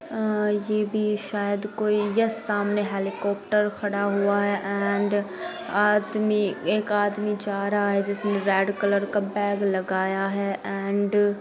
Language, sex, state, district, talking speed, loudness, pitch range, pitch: Hindi, female, Bihar, Gopalganj, 140 wpm, -24 LUFS, 200-210 Hz, 205 Hz